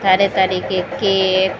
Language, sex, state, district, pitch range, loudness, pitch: Hindi, female, Bihar, Saran, 185-195 Hz, -16 LUFS, 190 Hz